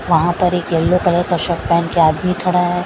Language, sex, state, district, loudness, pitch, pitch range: Hindi, female, Maharashtra, Mumbai Suburban, -16 LUFS, 175 Hz, 170-180 Hz